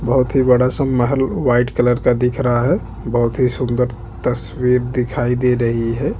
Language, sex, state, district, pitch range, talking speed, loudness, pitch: Hindi, male, Chhattisgarh, Bastar, 120-125 Hz, 185 wpm, -17 LUFS, 125 Hz